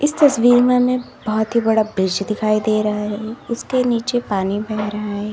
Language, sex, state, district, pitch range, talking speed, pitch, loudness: Hindi, female, Uttar Pradesh, Lalitpur, 210-245 Hz, 200 wpm, 215 Hz, -18 LUFS